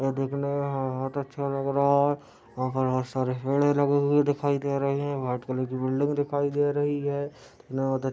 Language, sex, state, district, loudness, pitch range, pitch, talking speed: Hindi, male, Bihar, Madhepura, -27 LUFS, 130-145 Hz, 140 Hz, 215 wpm